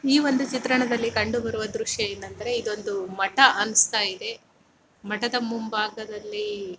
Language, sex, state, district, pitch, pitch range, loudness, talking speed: Kannada, male, Karnataka, Mysore, 230 Hz, 210-270 Hz, -24 LUFS, 125 wpm